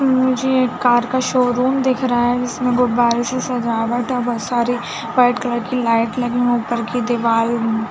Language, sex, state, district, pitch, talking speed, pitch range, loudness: Hindi, female, Chhattisgarh, Bilaspur, 245 Hz, 190 wpm, 235-255 Hz, -18 LUFS